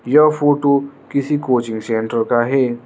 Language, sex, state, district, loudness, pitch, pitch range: Hindi, male, Arunachal Pradesh, Lower Dibang Valley, -17 LUFS, 135 Hz, 120-140 Hz